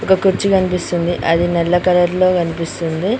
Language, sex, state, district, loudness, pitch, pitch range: Telugu, female, Telangana, Mahabubabad, -16 LUFS, 175 Hz, 170-185 Hz